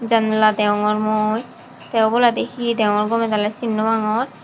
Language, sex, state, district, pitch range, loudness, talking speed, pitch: Chakma, female, Tripura, Dhalai, 215-235 Hz, -19 LUFS, 160 wpm, 220 Hz